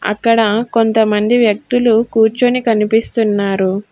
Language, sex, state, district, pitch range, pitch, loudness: Telugu, female, Telangana, Hyderabad, 210-230 Hz, 225 Hz, -13 LUFS